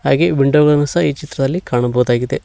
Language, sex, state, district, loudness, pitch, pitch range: Kannada, male, Karnataka, Koppal, -15 LUFS, 145 Hz, 125-150 Hz